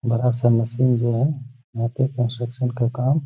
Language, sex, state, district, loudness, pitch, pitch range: Hindi, male, Bihar, Gaya, -22 LUFS, 125 Hz, 120-130 Hz